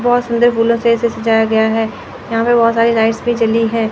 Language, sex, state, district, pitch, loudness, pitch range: Hindi, female, Chandigarh, Chandigarh, 230 Hz, -14 LUFS, 225-235 Hz